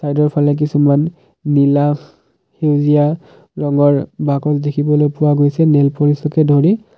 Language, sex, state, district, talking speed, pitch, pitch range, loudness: Assamese, male, Assam, Kamrup Metropolitan, 110 wpm, 145 Hz, 145-150 Hz, -14 LUFS